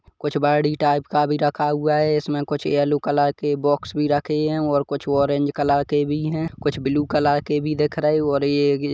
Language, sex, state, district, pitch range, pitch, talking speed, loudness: Hindi, male, Chhattisgarh, Kabirdham, 145-150 Hz, 145 Hz, 230 wpm, -21 LUFS